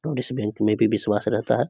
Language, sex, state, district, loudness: Hindi, male, Bihar, Samastipur, -23 LUFS